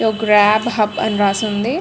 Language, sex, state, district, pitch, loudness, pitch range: Telugu, female, Andhra Pradesh, Krishna, 215 Hz, -15 LUFS, 210-220 Hz